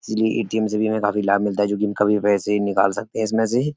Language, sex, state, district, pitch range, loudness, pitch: Hindi, male, Uttar Pradesh, Etah, 105-110 Hz, -20 LUFS, 105 Hz